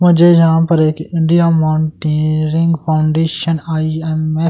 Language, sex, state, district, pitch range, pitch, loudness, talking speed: Hindi, male, Delhi, New Delhi, 155-165 Hz, 160 Hz, -13 LUFS, 120 wpm